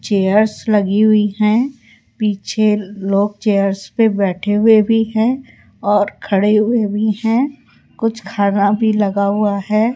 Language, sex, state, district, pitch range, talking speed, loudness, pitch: Hindi, female, Rajasthan, Jaipur, 200-220 Hz, 140 wpm, -16 LUFS, 210 Hz